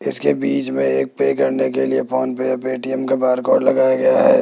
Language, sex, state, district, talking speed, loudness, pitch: Hindi, male, Rajasthan, Jaipur, 215 wpm, -18 LUFS, 130 Hz